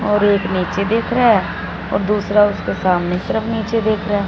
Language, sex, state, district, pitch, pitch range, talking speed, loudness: Hindi, female, Punjab, Fazilka, 205 Hz, 200-220 Hz, 180 wpm, -17 LUFS